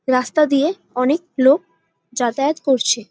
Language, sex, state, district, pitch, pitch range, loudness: Bengali, female, West Bengal, Jalpaiguri, 265 Hz, 245-295 Hz, -18 LUFS